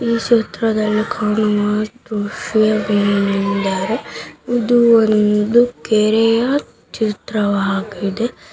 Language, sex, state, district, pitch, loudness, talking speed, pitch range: Kannada, male, Karnataka, Bijapur, 215 Hz, -16 LUFS, 55 wpm, 205-230 Hz